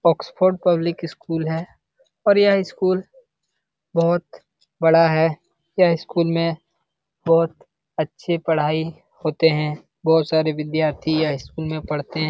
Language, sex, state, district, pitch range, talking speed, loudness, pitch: Hindi, male, Bihar, Jamui, 155-175 Hz, 140 wpm, -20 LUFS, 165 Hz